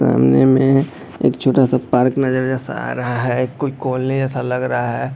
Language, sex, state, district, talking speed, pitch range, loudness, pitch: Hindi, male, Bihar, Madhepura, 200 wpm, 120-130 Hz, -17 LUFS, 130 Hz